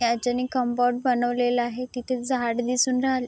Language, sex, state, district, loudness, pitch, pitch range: Marathi, female, Maharashtra, Chandrapur, -24 LUFS, 245 Hz, 245-255 Hz